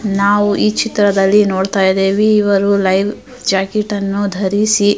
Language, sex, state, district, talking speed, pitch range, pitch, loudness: Kannada, female, Karnataka, Mysore, 130 wpm, 195-210 Hz, 205 Hz, -14 LUFS